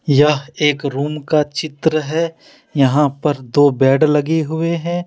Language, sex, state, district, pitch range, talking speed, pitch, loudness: Hindi, male, Jharkhand, Deoghar, 145-160 Hz, 155 wpm, 150 Hz, -16 LUFS